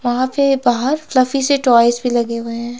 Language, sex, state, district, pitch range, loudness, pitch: Hindi, female, Himachal Pradesh, Shimla, 240-270 Hz, -16 LUFS, 250 Hz